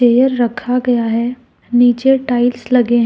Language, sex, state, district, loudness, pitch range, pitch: Hindi, female, Jharkhand, Deoghar, -14 LUFS, 240-250 Hz, 245 Hz